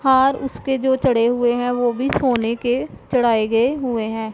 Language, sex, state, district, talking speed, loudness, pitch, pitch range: Hindi, female, Punjab, Pathankot, 195 wpm, -19 LUFS, 245 Hz, 235-265 Hz